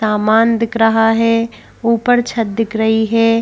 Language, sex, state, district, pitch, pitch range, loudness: Hindi, female, Madhya Pradesh, Bhopal, 225 Hz, 220-230 Hz, -14 LUFS